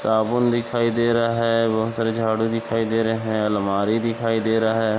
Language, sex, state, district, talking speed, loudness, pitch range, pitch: Bhojpuri, male, Uttar Pradesh, Gorakhpur, 205 wpm, -21 LUFS, 110-115 Hz, 115 Hz